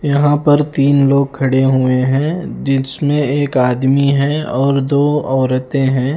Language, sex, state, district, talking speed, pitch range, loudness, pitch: Hindi, male, Himachal Pradesh, Shimla, 145 wpm, 135-145 Hz, -14 LUFS, 140 Hz